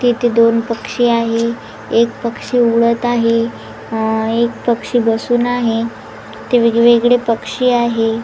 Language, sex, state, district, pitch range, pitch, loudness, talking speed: Marathi, female, Maharashtra, Washim, 230-240 Hz, 235 Hz, -15 LUFS, 125 wpm